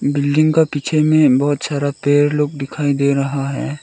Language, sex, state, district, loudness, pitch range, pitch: Hindi, male, Arunachal Pradesh, Lower Dibang Valley, -16 LUFS, 140-150 Hz, 145 Hz